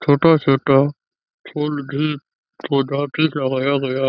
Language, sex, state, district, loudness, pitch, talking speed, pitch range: Hindi, male, Chhattisgarh, Bastar, -18 LUFS, 140 Hz, 130 wpm, 135-150 Hz